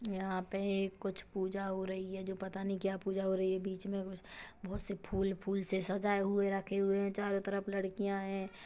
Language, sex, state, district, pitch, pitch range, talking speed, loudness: Hindi, female, Chhattisgarh, Kabirdham, 195 Hz, 190-195 Hz, 215 wpm, -37 LUFS